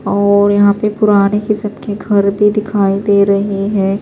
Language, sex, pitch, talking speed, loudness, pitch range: Urdu, female, 205 Hz, 180 wpm, -13 LUFS, 200-210 Hz